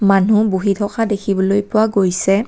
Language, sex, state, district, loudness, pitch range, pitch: Assamese, female, Assam, Kamrup Metropolitan, -16 LUFS, 195-215 Hz, 200 Hz